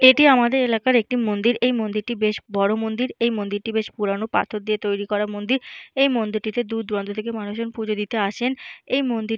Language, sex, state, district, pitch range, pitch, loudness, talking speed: Bengali, female, Jharkhand, Jamtara, 210-245 Hz, 225 Hz, -22 LUFS, 200 wpm